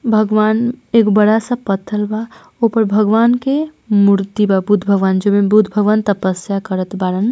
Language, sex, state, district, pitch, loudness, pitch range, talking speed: Hindi, female, Bihar, East Champaran, 210 Hz, -15 LUFS, 200-225 Hz, 145 wpm